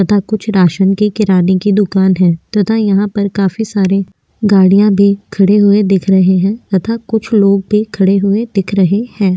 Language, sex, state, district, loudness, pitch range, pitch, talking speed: Hindi, female, Maharashtra, Aurangabad, -12 LUFS, 190-210 Hz, 200 Hz, 185 wpm